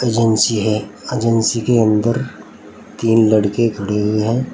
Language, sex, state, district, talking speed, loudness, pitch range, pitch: Hindi, male, Uttar Pradesh, Saharanpur, 130 wpm, -16 LUFS, 105-115 Hz, 110 Hz